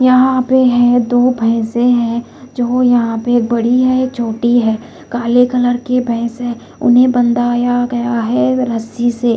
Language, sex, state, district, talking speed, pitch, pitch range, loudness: Hindi, female, Bihar, Patna, 160 wpm, 240 Hz, 235-250 Hz, -13 LUFS